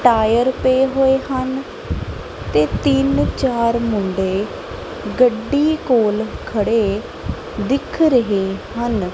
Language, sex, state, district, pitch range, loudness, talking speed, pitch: Punjabi, female, Punjab, Kapurthala, 200-260 Hz, -18 LUFS, 90 wpm, 230 Hz